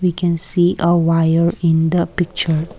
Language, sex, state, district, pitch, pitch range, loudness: English, female, Assam, Kamrup Metropolitan, 170 Hz, 165-175 Hz, -16 LUFS